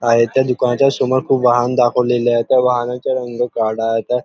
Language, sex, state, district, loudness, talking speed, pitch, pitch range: Marathi, male, Maharashtra, Nagpur, -16 LUFS, 185 wpm, 125 Hz, 120-130 Hz